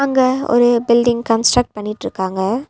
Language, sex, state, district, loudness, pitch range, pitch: Tamil, female, Tamil Nadu, Nilgiris, -16 LUFS, 225-245 Hz, 240 Hz